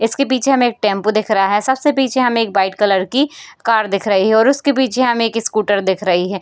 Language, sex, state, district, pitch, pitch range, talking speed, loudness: Hindi, female, Bihar, Darbhanga, 220 Hz, 200-260 Hz, 260 wpm, -15 LUFS